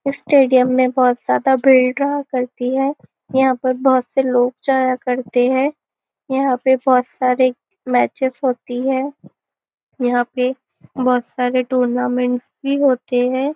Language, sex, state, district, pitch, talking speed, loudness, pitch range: Hindi, female, Maharashtra, Nagpur, 255 Hz, 140 wpm, -17 LUFS, 250-265 Hz